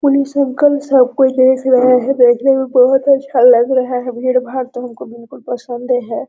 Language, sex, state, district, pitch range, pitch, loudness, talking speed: Hindi, female, Bihar, Araria, 245-270 Hz, 255 Hz, -13 LUFS, 200 wpm